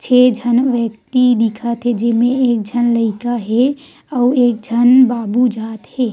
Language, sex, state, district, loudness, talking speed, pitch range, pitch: Chhattisgarhi, female, Chhattisgarh, Rajnandgaon, -15 LUFS, 155 wpm, 230-250 Hz, 240 Hz